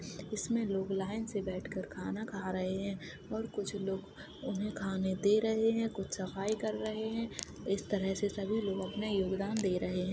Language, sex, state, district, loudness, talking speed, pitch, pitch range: Hindi, female, Uttar Pradesh, Jalaun, -36 LUFS, 185 wpm, 200 Hz, 190-215 Hz